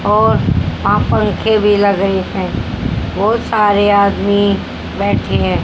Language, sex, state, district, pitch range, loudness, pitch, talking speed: Hindi, female, Haryana, Rohtak, 190-205 Hz, -14 LUFS, 200 Hz, 105 wpm